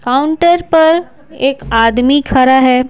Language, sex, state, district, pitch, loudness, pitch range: Hindi, female, Bihar, Patna, 270 Hz, -11 LUFS, 255-320 Hz